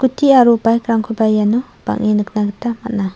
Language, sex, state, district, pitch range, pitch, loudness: Garo, female, Meghalaya, South Garo Hills, 210-240 Hz, 225 Hz, -15 LUFS